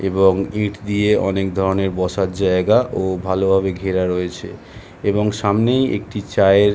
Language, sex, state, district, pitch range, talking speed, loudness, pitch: Bengali, male, West Bengal, Jhargram, 95-105 Hz, 150 wpm, -18 LUFS, 95 Hz